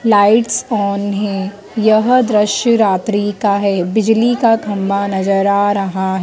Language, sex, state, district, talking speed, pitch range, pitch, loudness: Hindi, female, Madhya Pradesh, Dhar, 145 wpm, 200-225 Hz, 205 Hz, -14 LUFS